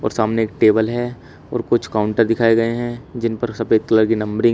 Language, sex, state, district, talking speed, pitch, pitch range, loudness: Hindi, male, Uttar Pradesh, Shamli, 235 wpm, 115 Hz, 110-120 Hz, -18 LUFS